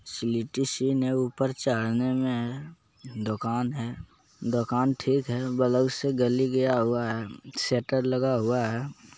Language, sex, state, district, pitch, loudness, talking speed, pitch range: Magahi, male, Bihar, Jamui, 125 Hz, -27 LUFS, 135 wpm, 120-130 Hz